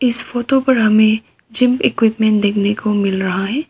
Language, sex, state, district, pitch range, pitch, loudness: Hindi, female, Arunachal Pradesh, Papum Pare, 205-250 Hz, 220 Hz, -15 LUFS